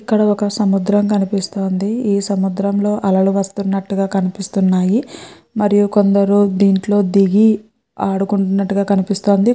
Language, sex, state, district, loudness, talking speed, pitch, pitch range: Telugu, female, Andhra Pradesh, Srikakulam, -16 LUFS, 115 wpm, 200 Hz, 195-205 Hz